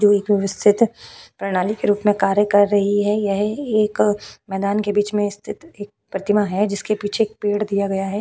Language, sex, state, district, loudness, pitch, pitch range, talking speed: Hindi, female, Uttar Pradesh, Jyotiba Phule Nagar, -19 LUFS, 205 Hz, 200-210 Hz, 205 wpm